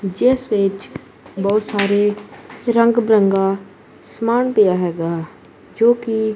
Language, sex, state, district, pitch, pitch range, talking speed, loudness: Punjabi, female, Punjab, Kapurthala, 205 Hz, 195-230 Hz, 105 wpm, -17 LUFS